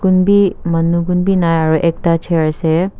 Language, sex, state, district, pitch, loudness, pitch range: Nagamese, female, Nagaland, Kohima, 170 Hz, -14 LUFS, 165-185 Hz